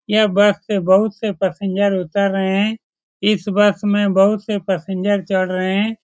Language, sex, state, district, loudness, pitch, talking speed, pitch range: Hindi, male, Bihar, Supaul, -17 LUFS, 200 Hz, 180 wpm, 190-210 Hz